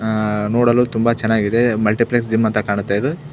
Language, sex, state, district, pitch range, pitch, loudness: Kannada, male, Karnataka, Belgaum, 105-120 Hz, 110 Hz, -17 LUFS